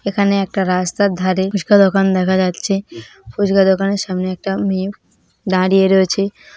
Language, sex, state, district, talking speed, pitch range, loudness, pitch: Bengali, female, West Bengal, North 24 Parganas, 135 wpm, 185-200 Hz, -16 LUFS, 190 Hz